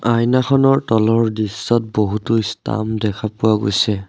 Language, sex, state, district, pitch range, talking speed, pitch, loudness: Assamese, male, Assam, Sonitpur, 105-115 Hz, 115 wpm, 110 Hz, -17 LUFS